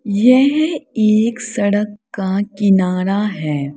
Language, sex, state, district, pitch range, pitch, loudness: Hindi, female, Uttar Pradesh, Saharanpur, 195-230 Hz, 205 Hz, -16 LUFS